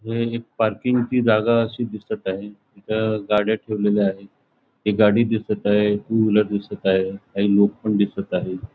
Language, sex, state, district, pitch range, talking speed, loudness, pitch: Marathi, male, Goa, North and South Goa, 100-110 Hz, 165 wpm, -21 LUFS, 105 Hz